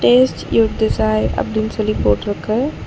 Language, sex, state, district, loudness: Tamil, female, Tamil Nadu, Chennai, -17 LUFS